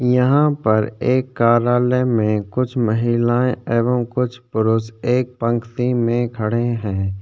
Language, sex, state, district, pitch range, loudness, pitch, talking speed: Hindi, male, Chhattisgarh, Korba, 115-125 Hz, -18 LUFS, 120 Hz, 125 wpm